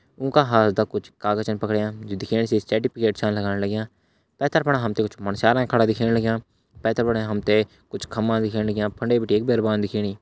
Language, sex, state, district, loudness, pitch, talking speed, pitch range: Hindi, male, Uttarakhand, Uttarkashi, -23 LUFS, 110 Hz, 195 wpm, 105-115 Hz